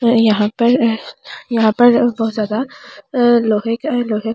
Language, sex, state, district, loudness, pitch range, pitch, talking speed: Hindi, female, Delhi, New Delhi, -15 LUFS, 220-245 Hz, 230 Hz, 125 wpm